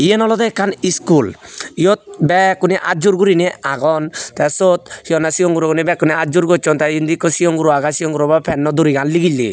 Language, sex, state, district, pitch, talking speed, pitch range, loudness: Chakma, male, Tripura, Unakoti, 170 Hz, 175 wpm, 155-185 Hz, -15 LUFS